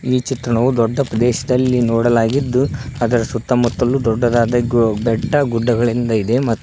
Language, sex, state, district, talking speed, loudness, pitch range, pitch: Kannada, male, Karnataka, Koppal, 90 wpm, -16 LUFS, 115-125 Hz, 120 Hz